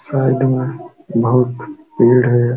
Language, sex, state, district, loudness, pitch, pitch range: Hindi, male, Uttar Pradesh, Jalaun, -15 LUFS, 130 Hz, 120-145 Hz